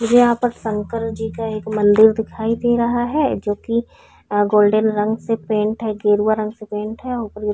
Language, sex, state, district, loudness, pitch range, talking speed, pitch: Hindi, female, Chhattisgarh, Rajnandgaon, -19 LUFS, 210-230 Hz, 215 wpm, 220 Hz